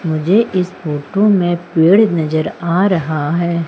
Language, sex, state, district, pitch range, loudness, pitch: Hindi, female, Madhya Pradesh, Umaria, 160-190 Hz, -15 LUFS, 175 Hz